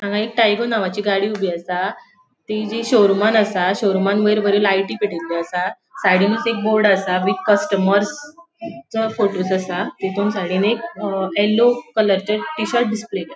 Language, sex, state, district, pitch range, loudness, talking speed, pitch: Konkani, female, Goa, North and South Goa, 190-225 Hz, -18 LUFS, 155 wpm, 205 Hz